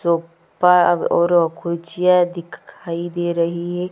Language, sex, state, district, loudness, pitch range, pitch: Hindi, female, Chhattisgarh, Kabirdham, -18 LUFS, 170-175 Hz, 170 Hz